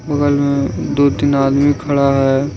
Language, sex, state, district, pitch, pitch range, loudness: Hindi, male, Jharkhand, Ranchi, 140 Hz, 135-145 Hz, -15 LUFS